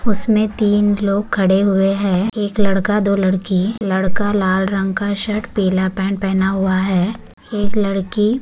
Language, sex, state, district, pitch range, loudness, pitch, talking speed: Hindi, female, Maharashtra, Chandrapur, 190-210 Hz, -17 LUFS, 200 Hz, 165 wpm